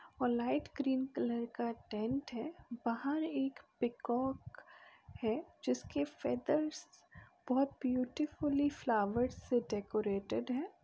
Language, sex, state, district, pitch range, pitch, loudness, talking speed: Bhojpuri, female, Uttar Pradesh, Deoria, 235-280 Hz, 250 Hz, -37 LUFS, 105 wpm